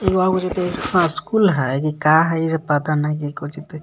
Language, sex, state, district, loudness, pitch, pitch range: Magahi, male, Jharkhand, Palamu, -19 LUFS, 155 Hz, 150-180 Hz